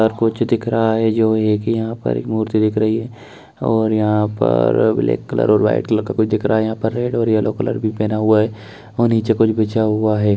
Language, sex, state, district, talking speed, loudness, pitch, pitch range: Hindi, male, Bihar, Begusarai, 250 wpm, -17 LUFS, 110 Hz, 110-115 Hz